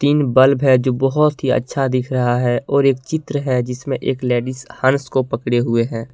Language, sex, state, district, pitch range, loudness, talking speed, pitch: Hindi, male, Jharkhand, Deoghar, 125-140 Hz, -17 LUFS, 215 wpm, 130 Hz